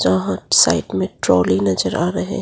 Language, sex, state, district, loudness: Hindi, female, Arunachal Pradesh, Lower Dibang Valley, -17 LUFS